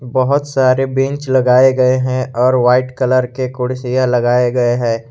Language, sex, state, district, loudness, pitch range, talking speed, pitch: Hindi, male, Jharkhand, Garhwa, -14 LUFS, 125-130 Hz, 165 wpm, 130 Hz